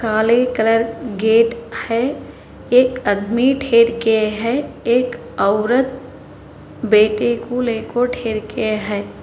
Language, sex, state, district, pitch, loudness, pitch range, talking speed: Hindi, female, Telangana, Hyderabad, 230 Hz, -17 LUFS, 220-245 Hz, 90 wpm